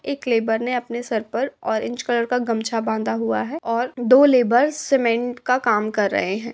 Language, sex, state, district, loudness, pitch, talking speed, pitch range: Hindi, female, Uttar Pradesh, Budaun, -20 LUFS, 235 Hz, 200 wpm, 225-250 Hz